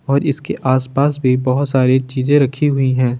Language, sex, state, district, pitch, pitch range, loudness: Hindi, male, Bihar, Kaimur, 130 Hz, 130-145 Hz, -16 LUFS